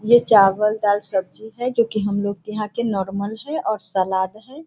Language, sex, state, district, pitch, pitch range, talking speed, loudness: Hindi, female, Bihar, Sitamarhi, 210 Hz, 200-225 Hz, 205 wpm, -20 LUFS